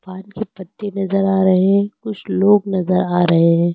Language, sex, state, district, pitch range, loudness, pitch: Hindi, female, Uttar Pradesh, Lucknow, 185-200 Hz, -16 LUFS, 190 Hz